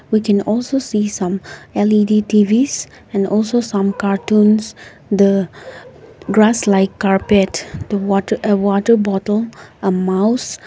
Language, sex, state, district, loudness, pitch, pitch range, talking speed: English, female, Nagaland, Kohima, -16 LUFS, 205 Hz, 195-215 Hz, 115 wpm